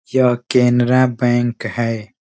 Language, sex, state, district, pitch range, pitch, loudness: Hindi, male, Uttar Pradesh, Ghazipur, 120-125 Hz, 120 Hz, -16 LUFS